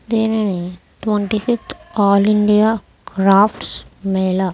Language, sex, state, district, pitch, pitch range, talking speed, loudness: Telugu, female, Andhra Pradesh, Krishna, 205 Hz, 195-215 Hz, 105 wpm, -17 LUFS